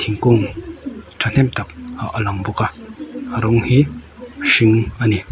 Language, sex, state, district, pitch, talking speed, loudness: Mizo, male, Mizoram, Aizawl, 115 Hz, 160 wpm, -17 LUFS